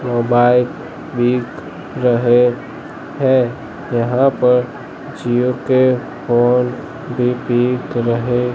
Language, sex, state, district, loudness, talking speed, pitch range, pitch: Hindi, male, Gujarat, Gandhinagar, -16 LUFS, 85 wpm, 120-125 Hz, 125 Hz